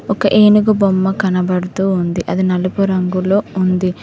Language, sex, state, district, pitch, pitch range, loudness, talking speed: Telugu, female, Telangana, Mahabubabad, 190 Hz, 185-200 Hz, -15 LUFS, 135 wpm